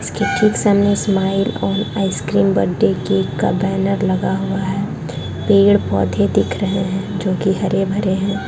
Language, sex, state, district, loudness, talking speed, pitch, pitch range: Hindi, female, Bihar, Darbhanga, -17 LUFS, 150 wpm, 195 Hz, 190-200 Hz